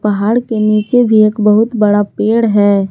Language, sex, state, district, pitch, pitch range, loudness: Hindi, female, Jharkhand, Garhwa, 215 Hz, 205-225 Hz, -11 LUFS